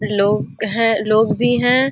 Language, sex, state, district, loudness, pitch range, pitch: Hindi, female, Uttar Pradesh, Deoria, -17 LUFS, 210-245 Hz, 225 Hz